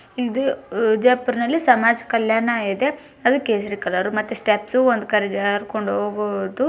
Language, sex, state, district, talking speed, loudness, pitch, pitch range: Kannada, male, Karnataka, Bijapur, 55 wpm, -20 LUFS, 230 Hz, 210-250 Hz